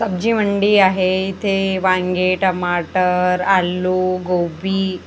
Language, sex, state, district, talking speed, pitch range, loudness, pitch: Marathi, male, Maharashtra, Gondia, 95 wpm, 180-195 Hz, -17 LUFS, 185 Hz